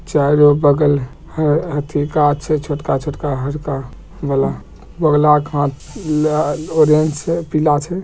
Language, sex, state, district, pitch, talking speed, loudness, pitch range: Hindi, male, Bihar, Begusarai, 150 Hz, 135 wpm, -16 LUFS, 145-155 Hz